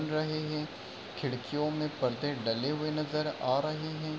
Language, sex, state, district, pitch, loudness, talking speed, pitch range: Hindi, male, Uttar Pradesh, Varanasi, 150 Hz, -33 LUFS, 170 wpm, 140-155 Hz